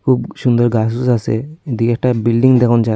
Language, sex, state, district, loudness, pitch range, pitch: Bengali, female, Tripura, Unakoti, -15 LUFS, 115-125 Hz, 120 Hz